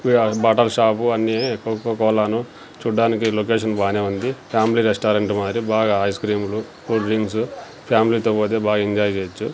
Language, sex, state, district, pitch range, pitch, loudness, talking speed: Telugu, male, Andhra Pradesh, Sri Satya Sai, 105-115 Hz, 110 Hz, -20 LUFS, 150 wpm